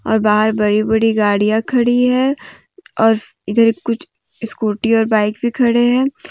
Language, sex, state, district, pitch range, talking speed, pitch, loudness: Hindi, female, Jharkhand, Deoghar, 215-245 Hz, 150 wpm, 225 Hz, -15 LUFS